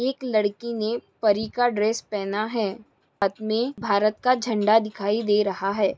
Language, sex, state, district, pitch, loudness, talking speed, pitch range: Hindi, female, Maharashtra, Aurangabad, 215 Hz, -24 LUFS, 170 wpm, 205-235 Hz